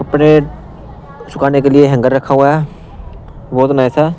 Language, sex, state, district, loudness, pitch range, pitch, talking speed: Hindi, male, Punjab, Pathankot, -11 LUFS, 130-145 Hz, 140 Hz, 145 wpm